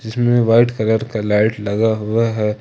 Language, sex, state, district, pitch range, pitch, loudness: Hindi, male, Jharkhand, Ranchi, 105-115 Hz, 110 Hz, -16 LUFS